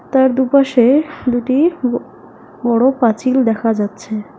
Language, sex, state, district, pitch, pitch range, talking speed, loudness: Bengali, female, West Bengal, Alipurduar, 255 Hz, 235-270 Hz, 110 wpm, -15 LUFS